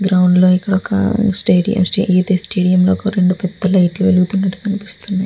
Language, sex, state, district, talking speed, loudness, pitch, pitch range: Telugu, female, Andhra Pradesh, Guntur, 180 wpm, -15 LUFS, 190 Hz, 185-200 Hz